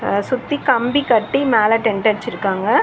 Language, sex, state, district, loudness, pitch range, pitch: Tamil, female, Tamil Nadu, Chennai, -17 LUFS, 215-255 Hz, 225 Hz